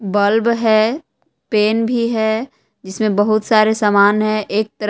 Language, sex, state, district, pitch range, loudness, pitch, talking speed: Hindi, female, Jharkhand, Palamu, 210-225 Hz, -16 LUFS, 215 Hz, 145 wpm